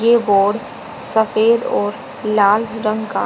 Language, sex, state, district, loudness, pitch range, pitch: Hindi, female, Haryana, Jhajjar, -16 LUFS, 205-225 Hz, 220 Hz